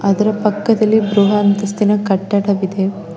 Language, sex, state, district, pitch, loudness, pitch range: Kannada, female, Karnataka, Bangalore, 205 Hz, -15 LUFS, 200-210 Hz